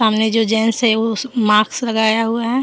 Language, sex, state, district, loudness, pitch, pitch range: Hindi, female, Jharkhand, Deoghar, -16 LUFS, 225 Hz, 220-230 Hz